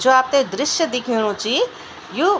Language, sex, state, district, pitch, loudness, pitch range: Garhwali, female, Uttarakhand, Tehri Garhwal, 260 Hz, -19 LUFS, 235-325 Hz